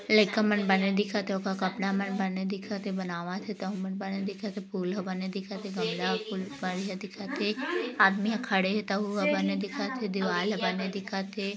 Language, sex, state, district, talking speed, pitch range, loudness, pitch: Hindi, female, Chhattisgarh, Korba, 220 wpm, 190-205 Hz, -30 LUFS, 195 Hz